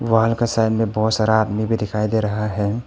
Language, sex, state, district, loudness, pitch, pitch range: Hindi, male, Arunachal Pradesh, Papum Pare, -19 LUFS, 110 Hz, 105-115 Hz